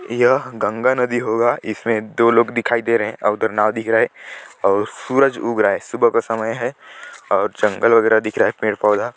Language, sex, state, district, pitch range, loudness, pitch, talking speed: Hindi, male, Chhattisgarh, Sarguja, 110-120 Hz, -18 LUFS, 115 Hz, 215 wpm